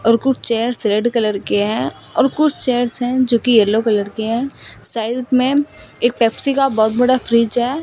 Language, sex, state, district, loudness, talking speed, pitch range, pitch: Hindi, female, Rajasthan, Bikaner, -17 LUFS, 190 wpm, 225-255 Hz, 240 Hz